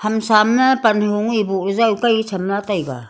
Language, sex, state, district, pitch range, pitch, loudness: Wancho, female, Arunachal Pradesh, Longding, 200-225 Hz, 215 Hz, -17 LUFS